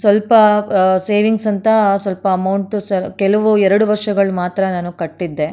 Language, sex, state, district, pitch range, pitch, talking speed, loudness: Kannada, female, Karnataka, Mysore, 185-210 Hz, 200 Hz, 140 wpm, -15 LUFS